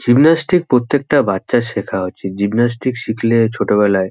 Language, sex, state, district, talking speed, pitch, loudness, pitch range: Bengali, male, West Bengal, North 24 Parganas, 130 wpm, 120 Hz, -15 LUFS, 100-130 Hz